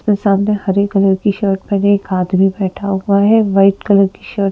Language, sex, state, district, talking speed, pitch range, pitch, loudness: Hindi, female, Madhya Pradesh, Bhopal, 210 wpm, 195-205 Hz, 200 Hz, -14 LUFS